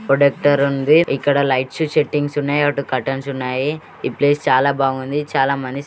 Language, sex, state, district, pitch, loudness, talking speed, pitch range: Telugu, male, Andhra Pradesh, Guntur, 140 Hz, -18 LUFS, 165 wpm, 135-145 Hz